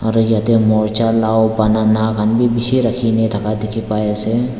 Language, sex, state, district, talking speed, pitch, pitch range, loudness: Nagamese, male, Nagaland, Dimapur, 145 wpm, 110 Hz, 110-115 Hz, -15 LUFS